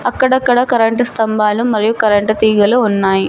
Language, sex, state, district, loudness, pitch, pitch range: Telugu, female, Telangana, Mahabubabad, -13 LUFS, 220 Hz, 210-245 Hz